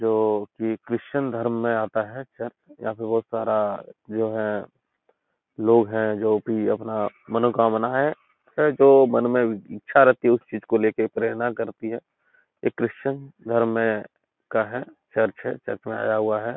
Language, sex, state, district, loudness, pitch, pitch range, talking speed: Hindi, male, Uttar Pradesh, Etah, -23 LUFS, 115 Hz, 110-120 Hz, 175 wpm